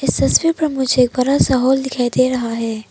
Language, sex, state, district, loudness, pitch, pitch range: Hindi, female, Arunachal Pradesh, Papum Pare, -16 LUFS, 255 Hz, 245-265 Hz